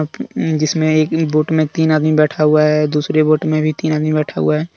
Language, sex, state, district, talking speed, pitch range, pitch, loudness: Hindi, male, Jharkhand, Deoghar, 225 wpm, 150-155 Hz, 155 Hz, -15 LUFS